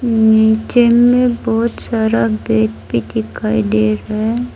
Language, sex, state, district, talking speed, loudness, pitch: Hindi, female, Arunachal Pradesh, Lower Dibang Valley, 130 wpm, -14 LUFS, 220 Hz